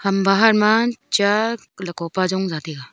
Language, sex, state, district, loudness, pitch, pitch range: Wancho, female, Arunachal Pradesh, Longding, -19 LUFS, 195 Hz, 180-220 Hz